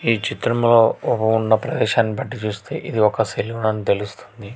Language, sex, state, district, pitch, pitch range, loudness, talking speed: Telugu, male, Telangana, Hyderabad, 110 Hz, 105-115 Hz, -19 LUFS, 155 wpm